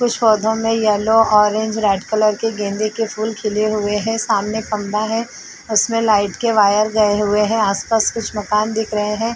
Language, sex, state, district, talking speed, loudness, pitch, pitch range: Hindi, female, Uttar Pradesh, Jalaun, 190 wpm, -17 LUFS, 215 Hz, 210-225 Hz